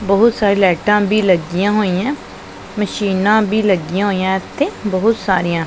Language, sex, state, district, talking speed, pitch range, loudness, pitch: Punjabi, female, Punjab, Pathankot, 150 wpm, 185-210 Hz, -16 LUFS, 200 Hz